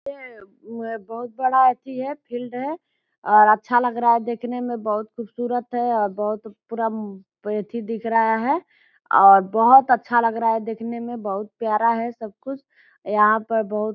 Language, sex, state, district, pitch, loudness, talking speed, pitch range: Hindi, female, Bihar, Purnia, 230 Hz, -20 LUFS, 170 wpm, 215-245 Hz